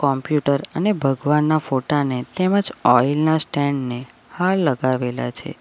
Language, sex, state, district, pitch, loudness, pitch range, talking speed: Gujarati, female, Gujarat, Valsad, 145 Hz, -20 LUFS, 130-160 Hz, 140 wpm